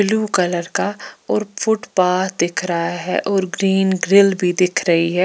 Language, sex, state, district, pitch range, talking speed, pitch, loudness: Hindi, female, Chandigarh, Chandigarh, 175-200 Hz, 170 wpm, 185 Hz, -18 LUFS